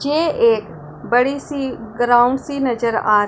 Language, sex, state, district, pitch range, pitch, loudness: Hindi, female, Punjab, Pathankot, 240-285 Hz, 255 Hz, -18 LUFS